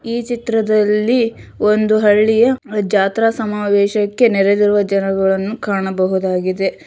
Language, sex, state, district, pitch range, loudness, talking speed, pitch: Kannada, female, Karnataka, Shimoga, 195-225 Hz, -15 LUFS, 80 wpm, 210 Hz